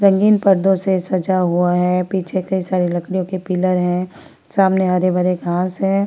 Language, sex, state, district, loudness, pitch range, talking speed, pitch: Hindi, female, Chhattisgarh, Korba, -17 LUFS, 180-190 Hz, 170 wpm, 185 Hz